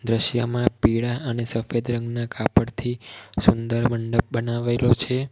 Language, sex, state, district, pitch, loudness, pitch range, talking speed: Gujarati, male, Gujarat, Valsad, 120 Hz, -23 LUFS, 115-120 Hz, 115 wpm